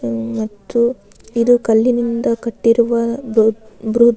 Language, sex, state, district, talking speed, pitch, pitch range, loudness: Kannada, female, Karnataka, Raichur, 100 wpm, 230 Hz, 220-235 Hz, -16 LUFS